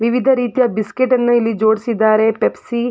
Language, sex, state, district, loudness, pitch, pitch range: Kannada, female, Karnataka, Mysore, -15 LUFS, 235 Hz, 220-245 Hz